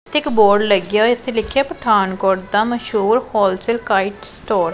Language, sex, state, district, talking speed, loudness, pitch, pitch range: Punjabi, female, Punjab, Pathankot, 175 wpm, -17 LUFS, 215 Hz, 200-240 Hz